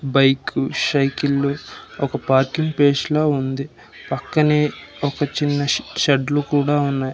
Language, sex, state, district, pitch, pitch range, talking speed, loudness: Telugu, male, Andhra Pradesh, Manyam, 140 Hz, 135-145 Hz, 125 wpm, -19 LUFS